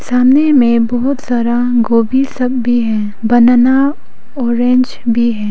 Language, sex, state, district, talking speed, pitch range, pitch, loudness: Hindi, female, Arunachal Pradesh, Papum Pare, 130 wpm, 235-255 Hz, 245 Hz, -12 LUFS